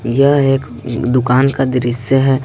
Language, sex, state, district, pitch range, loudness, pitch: Hindi, male, Jharkhand, Ranchi, 125-135 Hz, -14 LUFS, 130 Hz